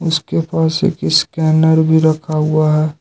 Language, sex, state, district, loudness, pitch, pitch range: Hindi, male, Jharkhand, Deoghar, -14 LUFS, 160 Hz, 155-160 Hz